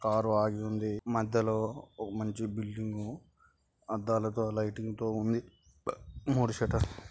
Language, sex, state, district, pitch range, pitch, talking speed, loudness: Telugu, male, Andhra Pradesh, Guntur, 105-115 Hz, 110 Hz, 95 wpm, -33 LUFS